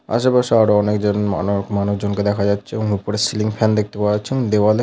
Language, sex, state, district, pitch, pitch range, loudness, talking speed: Bengali, male, West Bengal, Paschim Medinipur, 105 Hz, 100-110 Hz, -18 LUFS, 210 wpm